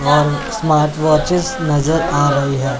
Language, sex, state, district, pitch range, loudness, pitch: Hindi, male, Chandigarh, Chandigarh, 145-160 Hz, -16 LUFS, 150 Hz